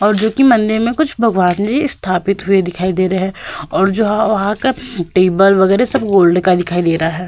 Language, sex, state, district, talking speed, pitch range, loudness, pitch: Hindi, female, Uttar Pradesh, Hamirpur, 230 wpm, 185-220 Hz, -14 LUFS, 195 Hz